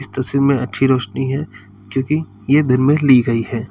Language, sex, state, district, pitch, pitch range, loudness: Hindi, male, Uttar Pradesh, Lalitpur, 130 Hz, 115-140 Hz, -16 LUFS